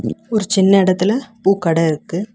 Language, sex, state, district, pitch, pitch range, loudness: Tamil, female, Tamil Nadu, Chennai, 195 Hz, 180-215 Hz, -16 LUFS